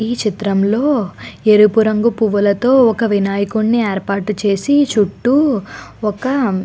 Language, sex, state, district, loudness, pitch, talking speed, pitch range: Telugu, female, Andhra Pradesh, Guntur, -15 LUFS, 215 Hz, 115 wpm, 200-240 Hz